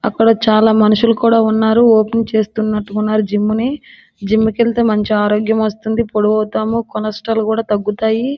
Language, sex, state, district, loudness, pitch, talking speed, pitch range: Telugu, female, Andhra Pradesh, Srikakulam, -14 LUFS, 220 Hz, 145 wpm, 215-230 Hz